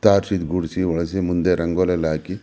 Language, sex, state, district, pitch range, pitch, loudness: Kannada, male, Karnataka, Mysore, 85-95 Hz, 90 Hz, -21 LUFS